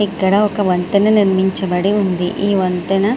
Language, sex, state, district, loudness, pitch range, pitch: Telugu, female, Andhra Pradesh, Srikakulam, -15 LUFS, 185-205 Hz, 195 Hz